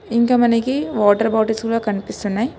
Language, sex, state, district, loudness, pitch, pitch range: Telugu, female, Telangana, Hyderabad, -18 LUFS, 225 Hz, 215-235 Hz